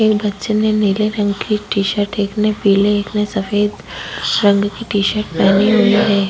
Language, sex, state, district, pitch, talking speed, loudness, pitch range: Hindi, female, Chhattisgarh, Kabirdham, 205 Hz, 200 wpm, -16 LUFS, 200-215 Hz